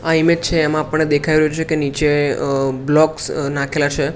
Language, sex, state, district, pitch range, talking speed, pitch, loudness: Gujarati, male, Gujarat, Gandhinagar, 145-155 Hz, 200 wpm, 155 Hz, -17 LUFS